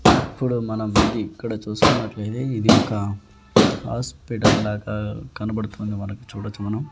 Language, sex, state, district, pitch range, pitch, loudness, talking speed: Telugu, male, Andhra Pradesh, Annamaya, 105-115 Hz, 105 Hz, -22 LUFS, 105 wpm